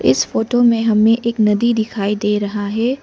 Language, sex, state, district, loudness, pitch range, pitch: Hindi, female, Arunachal Pradesh, Lower Dibang Valley, -16 LUFS, 210-235 Hz, 220 Hz